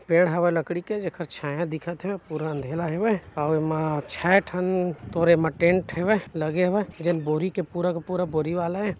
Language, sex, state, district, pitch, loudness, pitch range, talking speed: Chhattisgarhi, male, Chhattisgarh, Bilaspur, 170 Hz, -25 LUFS, 160-180 Hz, 205 wpm